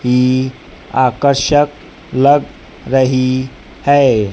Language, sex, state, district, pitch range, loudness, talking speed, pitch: Hindi, female, Madhya Pradesh, Dhar, 130-140 Hz, -14 LUFS, 70 wpm, 130 Hz